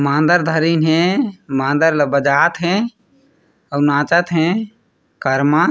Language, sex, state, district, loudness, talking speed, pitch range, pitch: Chhattisgarhi, male, Chhattisgarh, Raigarh, -16 LUFS, 115 wpm, 145-185 Hz, 160 Hz